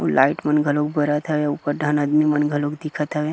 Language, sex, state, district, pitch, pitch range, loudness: Chhattisgarhi, male, Chhattisgarh, Kabirdham, 150 Hz, 145-150 Hz, -21 LUFS